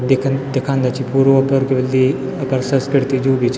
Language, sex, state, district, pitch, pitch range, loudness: Garhwali, male, Uttarakhand, Tehri Garhwal, 135 Hz, 130-135 Hz, -16 LUFS